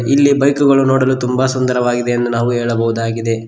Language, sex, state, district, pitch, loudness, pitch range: Kannada, male, Karnataka, Koppal, 125 Hz, -14 LUFS, 115-130 Hz